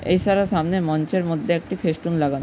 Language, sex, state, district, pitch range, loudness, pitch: Bengali, male, West Bengal, Jhargram, 160-185 Hz, -22 LUFS, 170 Hz